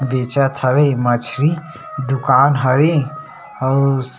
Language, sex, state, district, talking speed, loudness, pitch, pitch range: Chhattisgarhi, male, Chhattisgarh, Sarguja, 85 wpm, -16 LUFS, 135 Hz, 130-145 Hz